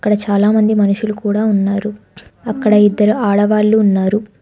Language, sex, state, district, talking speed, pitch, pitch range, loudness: Telugu, female, Telangana, Hyderabad, 120 wpm, 210 Hz, 205-215 Hz, -14 LUFS